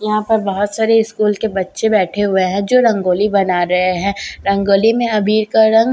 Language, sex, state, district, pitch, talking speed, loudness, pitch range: Hindi, female, Bihar, Katihar, 210 Hz, 200 wpm, -15 LUFS, 195-220 Hz